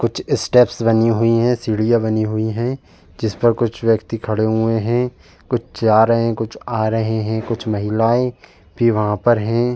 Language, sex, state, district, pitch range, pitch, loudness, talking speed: Hindi, male, Uttar Pradesh, Jalaun, 110-120 Hz, 115 Hz, -18 LUFS, 185 wpm